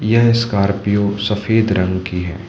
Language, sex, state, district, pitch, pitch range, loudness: Hindi, male, Manipur, Imphal West, 100 Hz, 95-110 Hz, -16 LUFS